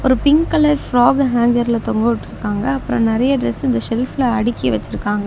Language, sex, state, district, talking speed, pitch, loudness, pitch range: Tamil, female, Tamil Nadu, Kanyakumari, 160 wpm, 245 Hz, -16 LUFS, 230-270 Hz